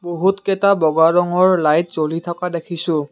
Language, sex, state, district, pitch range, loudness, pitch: Assamese, male, Assam, Kamrup Metropolitan, 160-180 Hz, -17 LUFS, 170 Hz